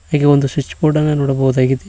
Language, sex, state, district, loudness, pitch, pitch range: Kannada, male, Karnataka, Koppal, -15 LUFS, 140 Hz, 135-150 Hz